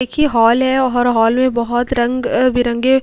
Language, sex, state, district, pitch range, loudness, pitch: Hindi, female, Uttar Pradesh, Hamirpur, 240-260 Hz, -15 LUFS, 245 Hz